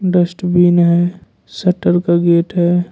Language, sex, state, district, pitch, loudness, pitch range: Hindi, male, Jharkhand, Ranchi, 175 Hz, -14 LUFS, 175-180 Hz